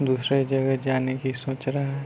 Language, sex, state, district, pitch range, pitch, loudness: Hindi, male, Bihar, Begusarai, 130-135 Hz, 135 Hz, -25 LUFS